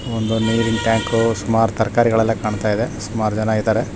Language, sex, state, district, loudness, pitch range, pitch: Kannada, male, Karnataka, Shimoga, -18 LUFS, 110-115 Hz, 110 Hz